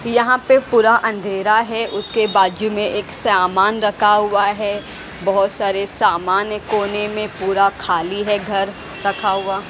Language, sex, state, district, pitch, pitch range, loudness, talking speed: Hindi, female, Haryana, Rohtak, 205 Hz, 195-215 Hz, -17 LUFS, 155 wpm